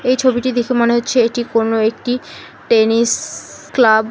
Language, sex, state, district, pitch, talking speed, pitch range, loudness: Bengali, female, West Bengal, Alipurduar, 235 Hz, 160 wpm, 225-250 Hz, -15 LUFS